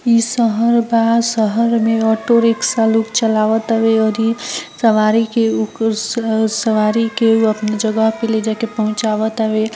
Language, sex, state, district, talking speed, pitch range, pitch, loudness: Hindi, female, Bihar, Gopalganj, 145 wpm, 220-230 Hz, 225 Hz, -15 LUFS